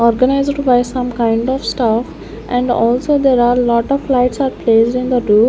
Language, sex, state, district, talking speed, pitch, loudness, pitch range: English, female, Chandigarh, Chandigarh, 205 wpm, 245 Hz, -14 LUFS, 235-260 Hz